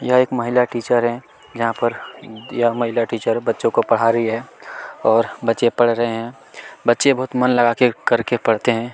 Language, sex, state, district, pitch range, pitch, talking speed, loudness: Hindi, male, Chhattisgarh, Kabirdham, 115-120 Hz, 120 Hz, 175 wpm, -18 LUFS